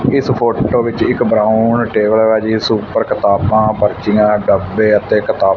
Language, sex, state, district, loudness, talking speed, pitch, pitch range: Punjabi, male, Punjab, Fazilka, -13 LUFS, 150 wpm, 110 Hz, 105-110 Hz